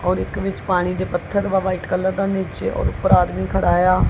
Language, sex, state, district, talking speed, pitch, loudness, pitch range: Punjabi, female, Punjab, Kapurthala, 235 wpm, 185 Hz, -20 LUFS, 180-195 Hz